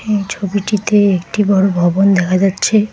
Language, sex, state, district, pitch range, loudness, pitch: Bengali, female, West Bengal, Alipurduar, 190-210 Hz, -14 LUFS, 195 Hz